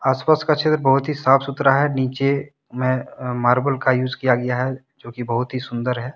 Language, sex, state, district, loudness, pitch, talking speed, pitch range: Hindi, male, Jharkhand, Deoghar, -20 LUFS, 130 Hz, 225 wpm, 125-140 Hz